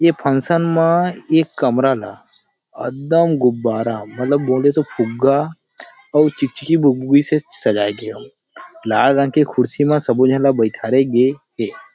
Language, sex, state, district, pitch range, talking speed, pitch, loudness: Chhattisgarhi, male, Chhattisgarh, Rajnandgaon, 125-160 Hz, 150 wpm, 140 Hz, -17 LUFS